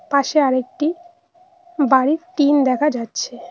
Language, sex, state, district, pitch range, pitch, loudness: Bengali, female, West Bengal, Cooch Behar, 265-345 Hz, 290 Hz, -18 LUFS